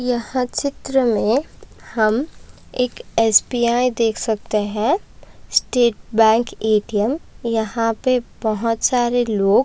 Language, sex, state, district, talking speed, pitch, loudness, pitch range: Hindi, female, Maharashtra, Aurangabad, 120 wpm, 230 Hz, -19 LUFS, 220-250 Hz